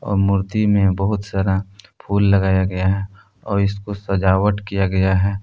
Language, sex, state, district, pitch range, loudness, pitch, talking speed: Hindi, male, Jharkhand, Palamu, 95-100 Hz, -19 LUFS, 100 Hz, 155 wpm